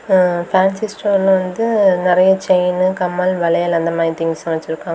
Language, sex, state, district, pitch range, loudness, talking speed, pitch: Tamil, female, Tamil Nadu, Kanyakumari, 170-190 Hz, -16 LUFS, 155 wpm, 180 Hz